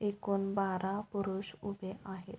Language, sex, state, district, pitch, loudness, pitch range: Marathi, female, Maharashtra, Pune, 195 Hz, -37 LUFS, 190-200 Hz